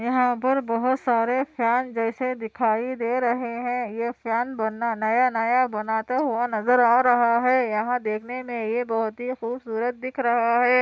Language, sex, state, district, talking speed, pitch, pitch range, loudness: Hindi, female, Andhra Pradesh, Anantapur, 175 wpm, 240 Hz, 230-250 Hz, -23 LUFS